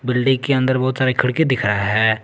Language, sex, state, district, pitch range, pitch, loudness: Hindi, male, Jharkhand, Garhwa, 110-130 Hz, 130 Hz, -18 LUFS